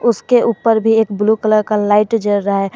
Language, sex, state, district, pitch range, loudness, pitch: Hindi, female, Jharkhand, Garhwa, 205-225 Hz, -14 LUFS, 215 Hz